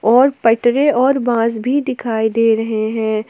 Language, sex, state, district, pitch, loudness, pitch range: Hindi, female, Jharkhand, Palamu, 230 Hz, -15 LUFS, 220-255 Hz